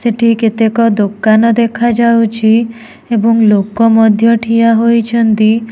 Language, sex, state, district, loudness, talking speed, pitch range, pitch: Odia, female, Odisha, Nuapada, -10 LUFS, 95 wpm, 220-230 Hz, 230 Hz